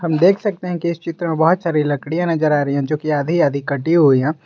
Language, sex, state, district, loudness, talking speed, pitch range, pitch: Hindi, male, Jharkhand, Garhwa, -17 LUFS, 285 wpm, 145-170 Hz, 160 Hz